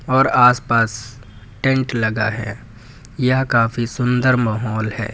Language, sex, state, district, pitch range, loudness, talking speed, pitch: Hindi, male, Uttar Pradesh, Lucknow, 110-125 Hz, -18 LUFS, 130 wpm, 120 Hz